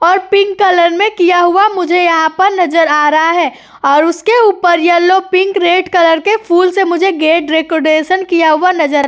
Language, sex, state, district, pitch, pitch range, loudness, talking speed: Hindi, female, Uttar Pradesh, Jyotiba Phule Nagar, 350 Hz, 325-380 Hz, -10 LUFS, 200 wpm